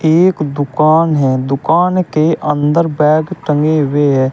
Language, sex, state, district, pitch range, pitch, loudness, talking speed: Hindi, male, Uttar Pradesh, Shamli, 145-160 Hz, 155 Hz, -13 LUFS, 140 wpm